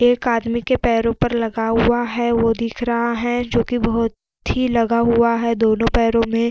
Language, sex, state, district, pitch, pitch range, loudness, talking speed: Hindi, female, Bihar, Vaishali, 235 Hz, 230-235 Hz, -18 LUFS, 210 wpm